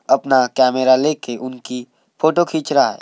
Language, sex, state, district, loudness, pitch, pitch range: Hindi, male, Maharashtra, Gondia, -17 LUFS, 130 Hz, 125-150 Hz